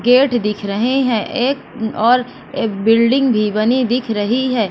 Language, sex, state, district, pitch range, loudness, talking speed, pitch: Hindi, female, Madhya Pradesh, Katni, 220-255 Hz, -16 LUFS, 165 wpm, 240 Hz